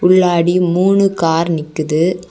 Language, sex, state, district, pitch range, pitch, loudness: Tamil, female, Tamil Nadu, Kanyakumari, 165-185 Hz, 175 Hz, -14 LUFS